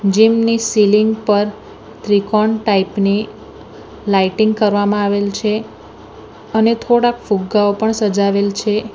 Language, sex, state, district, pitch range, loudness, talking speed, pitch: Gujarati, female, Gujarat, Valsad, 200-220 Hz, -15 LUFS, 115 wpm, 210 Hz